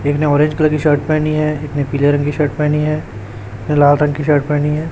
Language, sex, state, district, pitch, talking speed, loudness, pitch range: Hindi, male, Chhattisgarh, Raipur, 150 Hz, 270 wpm, -15 LUFS, 145-150 Hz